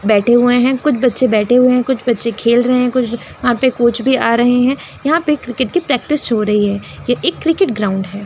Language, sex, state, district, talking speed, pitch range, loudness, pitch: Hindi, female, Chandigarh, Chandigarh, 245 wpm, 230-260 Hz, -14 LUFS, 245 Hz